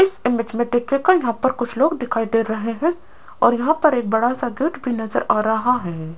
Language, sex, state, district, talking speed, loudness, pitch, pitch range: Hindi, female, Rajasthan, Jaipur, 225 wpm, -20 LUFS, 245 Hz, 225-280 Hz